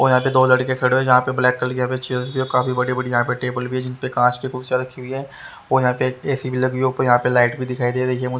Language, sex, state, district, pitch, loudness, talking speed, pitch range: Hindi, male, Haryana, Rohtak, 125 Hz, -19 LUFS, 320 wpm, 125-130 Hz